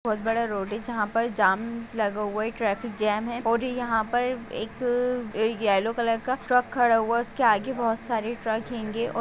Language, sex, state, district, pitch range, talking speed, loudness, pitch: Hindi, female, Bihar, Saran, 220-240 Hz, 210 wpm, -26 LUFS, 230 Hz